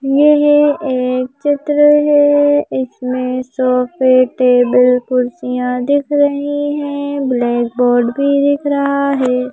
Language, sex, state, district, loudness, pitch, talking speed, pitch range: Hindi, female, Madhya Pradesh, Bhopal, -14 LUFS, 265 Hz, 105 wpm, 250-290 Hz